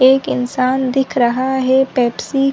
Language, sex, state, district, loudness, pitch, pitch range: Hindi, female, Chhattisgarh, Sarguja, -16 LUFS, 260 Hz, 255-265 Hz